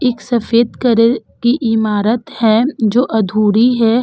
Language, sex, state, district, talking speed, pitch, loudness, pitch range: Hindi, female, Uttar Pradesh, Budaun, 135 wpm, 230 Hz, -14 LUFS, 220-245 Hz